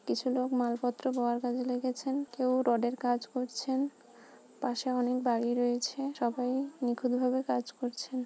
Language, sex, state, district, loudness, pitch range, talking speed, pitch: Bengali, female, West Bengal, Kolkata, -32 LUFS, 245-260 Hz, 140 wpm, 250 Hz